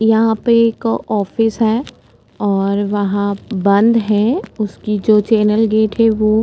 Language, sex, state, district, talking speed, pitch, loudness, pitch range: Hindi, female, Uttar Pradesh, Etah, 150 wpm, 215 Hz, -15 LUFS, 205-225 Hz